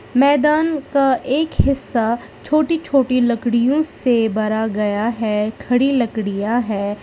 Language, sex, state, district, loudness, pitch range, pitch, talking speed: Hindi, female, Uttar Pradesh, Lalitpur, -18 LUFS, 220-275 Hz, 245 Hz, 120 wpm